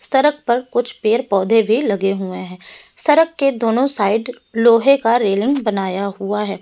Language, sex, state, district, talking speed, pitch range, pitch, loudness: Hindi, female, Delhi, New Delhi, 170 wpm, 200-255 Hz, 225 Hz, -16 LUFS